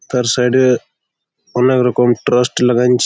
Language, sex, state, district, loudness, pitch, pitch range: Bengali, male, West Bengal, Malda, -14 LUFS, 125 Hz, 125-130 Hz